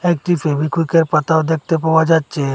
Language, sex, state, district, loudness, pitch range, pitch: Bengali, male, Assam, Hailakandi, -16 LUFS, 155-165 Hz, 160 Hz